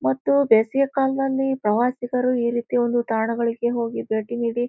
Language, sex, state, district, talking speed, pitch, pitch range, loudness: Kannada, female, Karnataka, Bijapur, 140 wpm, 235 Hz, 225-250 Hz, -22 LUFS